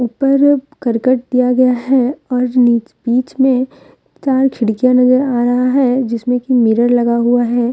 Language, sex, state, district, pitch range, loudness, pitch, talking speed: Hindi, female, Jharkhand, Deoghar, 240-260 Hz, -14 LUFS, 250 Hz, 170 wpm